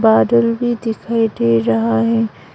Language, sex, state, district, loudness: Hindi, female, Arunachal Pradesh, Longding, -16 LUFS